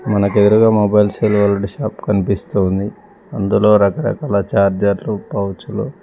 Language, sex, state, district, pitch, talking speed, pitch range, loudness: Telugu, male, Telangana, Mahabubabad, 100 Hz, 120 wpm, 100-105 Hz, -16 LUFS